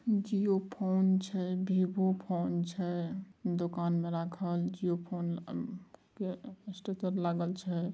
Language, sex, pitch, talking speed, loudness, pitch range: Angika, male, 185 Hz, 115 wpm, -34 LUFS, 175-195 Hz